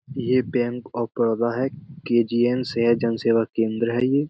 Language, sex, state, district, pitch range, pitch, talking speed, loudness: Hindi, male, Uttar Pradesh, Budaun, 115-130 Hz, 120 Hz, 180 wpm, -22 LUFS